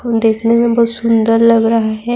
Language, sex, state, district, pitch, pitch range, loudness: Urdu, female, Bihar, Saharsa, 230 Hz, 225-230 Hz, -12 LUFS